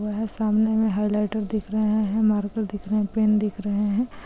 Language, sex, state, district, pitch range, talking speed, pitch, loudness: Hindi, female, West Bengal, Purulia, 210-220 Hz, 210 wpm, 215 Hz, -24 LUFS